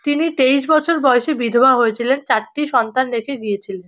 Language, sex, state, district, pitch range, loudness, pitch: Bengali, female, West Bengal, North 24 Parganas, 235-290 Hz, -16 LUFS, 260 Hz